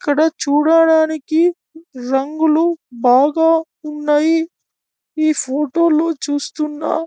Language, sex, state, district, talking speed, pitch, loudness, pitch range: Telugu, male, Telangana, Karimnagar, 75 wpm, 310 Hz, -16 LUFS, 295-325 Hz